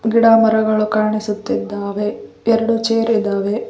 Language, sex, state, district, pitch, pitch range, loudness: Kannada, female, Karnataka, Koppal, 215 Hz, 210-225 Hz, -17 LUFS